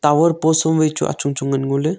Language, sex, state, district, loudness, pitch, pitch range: Wancho, male, Arunachal Pradesh, Longding, -17 LUFS, 155 Hz, 140-160 Hz